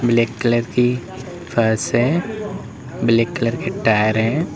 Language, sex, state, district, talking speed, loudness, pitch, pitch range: Hindi, male, Uttar Pradesh, Lalitpur, 130 wpm, -19 LUFS, 120 Hz, 115-135 Hz